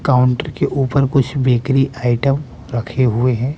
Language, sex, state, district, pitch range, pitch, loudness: Hindi, male, Bihar, West Champaran, 125-135 Hz, 130 Hz, -17 LUFS